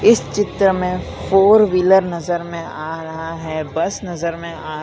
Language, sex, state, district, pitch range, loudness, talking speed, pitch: Hindi, male, Gujarat, Valsad, 160-190 Hz, -18 LUFS, 185 wpm, 170 Hz